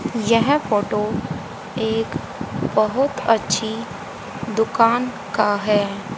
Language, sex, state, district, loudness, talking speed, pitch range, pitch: Hindi, female, Haryana, Rohtak, -21 LUFS, 80 wpm, 205-230 Hz, 220 Hz